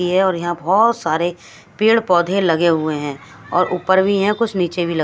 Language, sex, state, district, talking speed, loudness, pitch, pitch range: Hindi, female, Bihar, West Champaran, 215 wpm, -17 LUFS, 180 Hz, 165-190 Hz